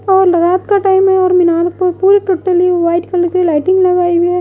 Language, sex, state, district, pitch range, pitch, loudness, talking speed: Hindi, female, Odisha, Malkangiri, 350-375 Hz, 360 Hz, -11 LUFS, 220 wpm